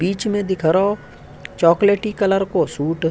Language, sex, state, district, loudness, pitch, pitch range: Hindi, male, Uttar Pradesh, Hamirpur, -18 LUFS, 190 Hz, 165-205 Hz